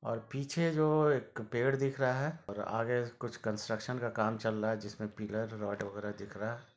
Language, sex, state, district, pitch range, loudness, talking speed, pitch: Hindi, male, Bihar, Sitamarhi, 105-130 Hz, -35 LUFS, 215 wpm, 115 Hz